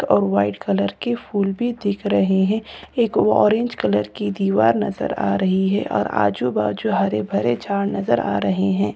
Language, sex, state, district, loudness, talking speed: Hindi, female, Bihar, Katihar, -20 LUFS, 190 wpm